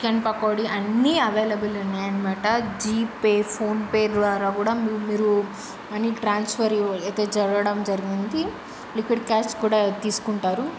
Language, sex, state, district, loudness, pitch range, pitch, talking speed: Telugu, female, Andhra Pradesh, Krishna, -23 LUFS, 205-220 Hz, 215 Hz, 100 wpm